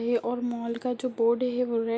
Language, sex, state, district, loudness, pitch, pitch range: Hindi, female, Uttar Pradesh, Ghazipur, -28 LUFS, 240 Hz, 235-250 Hz